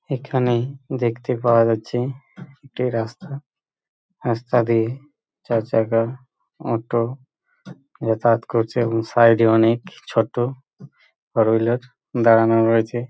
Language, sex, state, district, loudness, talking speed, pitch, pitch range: Bengali, male, West Bengal, Purulia, -20 LUFS, 95 wpm, 120 Hz, 115-125 Hz